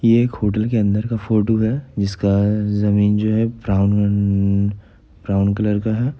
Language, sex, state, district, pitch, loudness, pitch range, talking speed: Hindi, male, Bihar, Gopalganj, 105 Hz, -18 LUFS, 100-110 Hz, 155 wpm